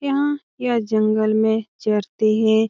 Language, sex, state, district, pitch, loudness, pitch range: Hindi, female, Bihar, Jamui, 220 Hz, -20 LUFS, 215-235 Hz